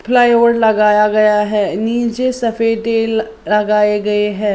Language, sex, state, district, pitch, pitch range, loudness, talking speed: Hindi, female, Maharashtra, Washim, 220 Hz, 210-230 Hz, -14 LUFS, 105 wpm